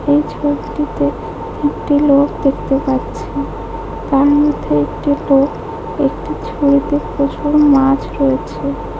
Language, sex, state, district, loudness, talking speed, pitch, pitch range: Bengali, female, West Bengal, Jhargram, -16 LUFS, 100 wpm, 285 Hz, 270-290 Hz